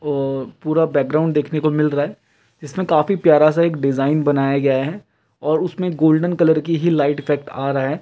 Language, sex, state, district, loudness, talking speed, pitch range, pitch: Hindi, male, Bihar, Jamui, -18 LUFS, 210 wpm, 140-160 Hz, 150 Hz